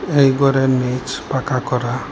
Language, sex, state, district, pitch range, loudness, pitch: Bengali, male, Assam, Hailakandi, 125-135 Hz, -18 LUFS, 130 Hz